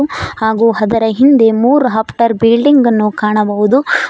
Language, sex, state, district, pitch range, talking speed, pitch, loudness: Kannada, female, Karnataka, Koppal, 220-250 Hz, 115 wpm, 225 Hz, -11 LUFS